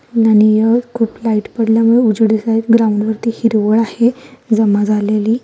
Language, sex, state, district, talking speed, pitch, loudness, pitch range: Marathi, female, Maharashtra, Solapur, 135 wpm, 225 Hz, -13 LUFS, 215-230 Hz